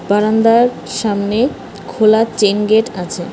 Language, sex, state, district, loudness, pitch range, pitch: Bengali, female, West Bengal, Cooch Behar, -14 LUFS, 205-225 Hz, 215 Hz